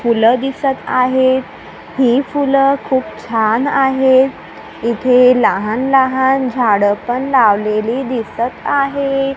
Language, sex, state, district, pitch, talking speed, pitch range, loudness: Marathi, female, Maharashtra, Gondia, 260 Hz, 95 wpm, 235-270 Hz, -14 LUFS